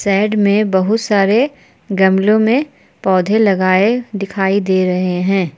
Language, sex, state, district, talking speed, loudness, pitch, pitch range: Hindi, female, Jharkhand, Palamu, 130 wpm, -14 LUFS, 200 Hz, 190-215 Hz